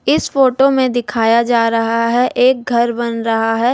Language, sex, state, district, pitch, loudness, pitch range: Hindi, female, Delhi, New Delhi, 235 Hz, -14 LUFS, 230-250 Hz